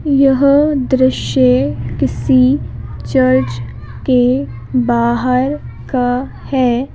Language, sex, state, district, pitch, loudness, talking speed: Hindi, female, Madhya Pradesh, Bhopal, 240 Hz, -14 LUFS, 70 wpm